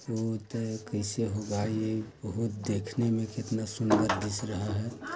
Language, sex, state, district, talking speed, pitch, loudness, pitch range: Hindi, male, Chhattisgarh, Balrampur, 165 wpm, 110 Hz, -31 LUFS, 105-115 Hz